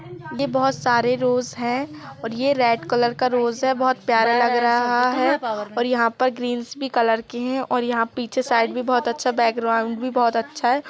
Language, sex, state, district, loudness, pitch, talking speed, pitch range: Hindi, female, Uttar Pradesh, Jalaun, -21 LUFS, 245 Hz, 205 wpm, 235-255 Hz